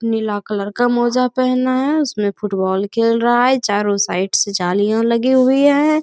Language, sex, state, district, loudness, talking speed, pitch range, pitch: Hindi, female, Bihar, Bhagalpur, -16 LUFS, 180 wpm, 205-255 Hz, 230 Hz